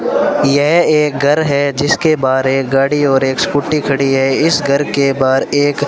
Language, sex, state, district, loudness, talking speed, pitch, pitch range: Hindi, male, Rajasthan, Bikaner, -13 LUFS, 185 wpm, 140 Hz, 135-145 Hz